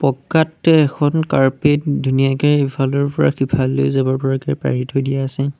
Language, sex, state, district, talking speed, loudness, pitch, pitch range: Assamese, male, Assam, Sonitpur, 140 wpm, -17 LUFS, 135 Hz, 135-145 Hz